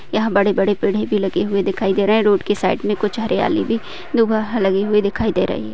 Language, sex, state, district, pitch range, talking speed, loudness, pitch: Hindi, female, Maharashtra, Pune, 195-220 Hz, 260 wpm, -18 LUFS, 205 Hz